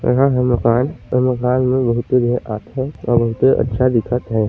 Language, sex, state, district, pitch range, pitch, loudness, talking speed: Hindi, male, Chhattisgarh, Sarguja, 115-130 Hz, 125 Hz, -17 LUFS, 185 wpm